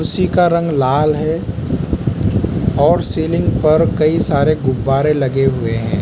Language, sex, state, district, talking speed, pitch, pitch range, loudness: Hindi, male, Mizoram, Aizawl, 140 wpm, 150 Hz, 135-160 Hz, -15 LUFS